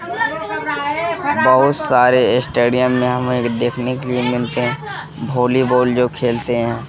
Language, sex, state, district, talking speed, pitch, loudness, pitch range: Hindi, male, Bihar, Kishanganj, 120 wpm, 125 Hz, -17 LUFS, 125-130 Hz